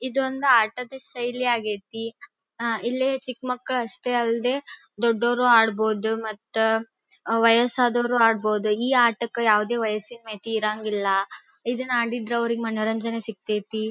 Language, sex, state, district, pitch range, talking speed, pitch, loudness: Kannada, female, Karnataka, Dharwad, 220-245 Hz, 105 wpm, 230 Hz, -23 LUFS